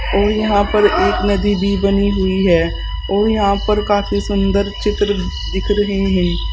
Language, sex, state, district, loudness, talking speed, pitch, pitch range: Hindi, female, Uttar Pradesh, Saharanpur, -16 LUFS, 165 wpm, 200 Hz, 195-205 Hz